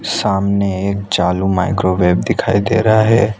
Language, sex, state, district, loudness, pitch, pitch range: Hindi, male, Gujarat, Valsad, -15 LUFS, 100 Hz, 95-100 Hz